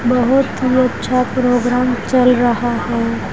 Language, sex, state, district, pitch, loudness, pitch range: Hindi, female, Haryana, Rohtak, 250 Hz, -15 LUFS, 240-255 Hz